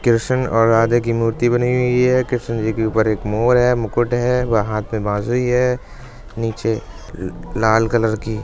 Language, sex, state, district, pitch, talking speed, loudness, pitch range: Bundeli, male, Uttar Pradesh, Budaun, 115 Hz, 185 wpm, -18 LUFS, 110-125 Hz